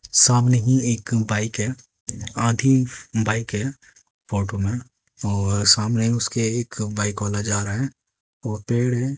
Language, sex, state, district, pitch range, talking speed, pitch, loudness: Hindi, male, Haryana, Jhajjar, 105-125 Hz, 150 wpm, 115 Hz, -21 LUFS